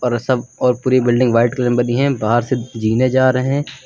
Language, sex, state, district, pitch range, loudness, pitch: Hindi, male, Uttar Pradesh, Lucknow, 120-130 Hz, -16 LUFS, 125 Hz